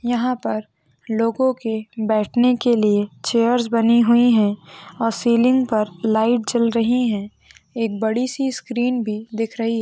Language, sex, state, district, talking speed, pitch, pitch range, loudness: Hindi, female, Maharashtra, Nagpur, 155 wpm, 230 Hz, 220-240 Hz, -19 LUFS